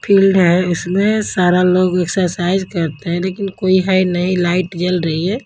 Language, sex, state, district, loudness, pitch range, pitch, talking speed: Hindi, female, Haryana, Jhajjar, -15 LUFS, 175-190 Hz, 180 Hz, 175 wpm